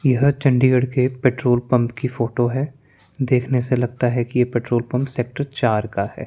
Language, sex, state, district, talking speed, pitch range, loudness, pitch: Hindi, male, Chandigarh, Chandigarh, 190 wpm, 120-130 Hz, -20 LUFS, 125 Hz